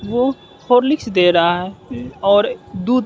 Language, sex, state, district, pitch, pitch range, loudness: Hindi, male, Bihar, West Champaran, 205 Hz, 175-250 Hz, -16 LUFS